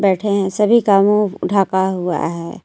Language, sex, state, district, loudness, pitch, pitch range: Hindi, female, Jharkhand, Garhwa, -16 LUFS, 195 Hz, 185-205 Hz